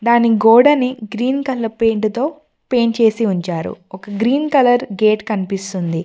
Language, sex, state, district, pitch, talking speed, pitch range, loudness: Telugu, female, Telangana, Mahabubabad, 225 Hz, 140 wpm, 205-250 Hz, -16 LUFS